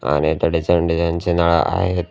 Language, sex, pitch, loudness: Marathi, male, 85 Hz, -18 LUFS